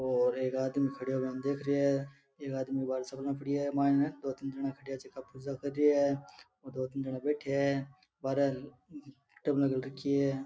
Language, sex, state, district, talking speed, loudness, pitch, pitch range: Marwari, male, Rajasthan, Nagaur, 195 wpm, -33 LUFS, 135 Hz, 130-140 Hz